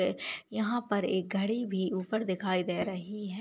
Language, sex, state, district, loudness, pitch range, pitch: Hindi, female, Uttar Pradesh, Ghazipur, -32 LUFS, 185-215 Hz, 200 Hz